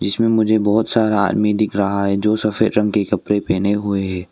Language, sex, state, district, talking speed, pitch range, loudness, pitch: Hindi, male, Arunachal Pradesh, Longding, 220 wpm, 100-110 Hz, -17 LUFS, 105 Hz